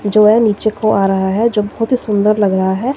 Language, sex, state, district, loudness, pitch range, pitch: Hindi, female, Himachal Pradesh, Shimla, -14 LUFS, 200-220 Hz, 210 Hz